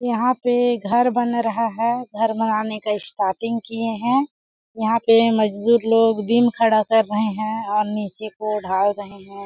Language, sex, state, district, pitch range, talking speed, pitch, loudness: Hindi, female, Chhattisgarh, Balrampur, 210-235 Hz, 165 wpm, 225 Hz, -20 LUFS